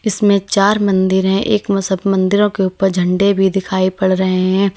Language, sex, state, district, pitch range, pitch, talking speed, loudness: Hindi, female, Uttar Pradesh, Lalitpur, 190-200 Hz, 195 Hz, 200 wpm, -15 LUFS